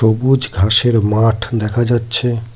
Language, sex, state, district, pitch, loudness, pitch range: Bengali, male, West Bengal, Cooch Behar, 115 Hz, -14 LUFS, 110-120 Hz